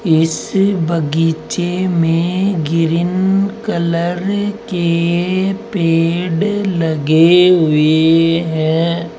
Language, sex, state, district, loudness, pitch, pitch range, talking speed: Hindi, male, Rajasthan, Jaipur, -14 LUFS, 170 Hz, 165-185 Hz, 65 wpm